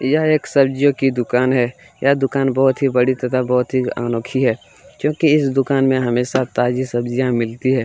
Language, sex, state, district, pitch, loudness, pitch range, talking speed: Hindi, male, Chhattisgarh, Kabirdham, 130 Hz, -17 LUFS, 125-135 Hz, 205 wpm